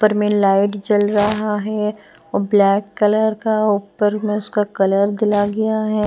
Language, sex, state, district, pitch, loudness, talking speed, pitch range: Hindi, female, Punjab, Pathankot, 210 Hz, -17 LUFS, 170 wpm, 205-215 Hz